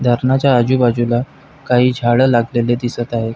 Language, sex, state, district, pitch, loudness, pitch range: Marathi, male, Maharashtra, Pune, 120 Hz, -15 LUFS, 120-125 Hz